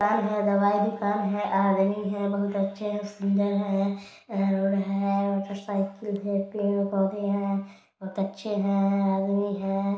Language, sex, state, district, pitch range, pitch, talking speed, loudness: Hindi, male, Chhattisgarh, Balrampur, 195-205 Hz, 200 Hz, 80 wpm, -26 LUFS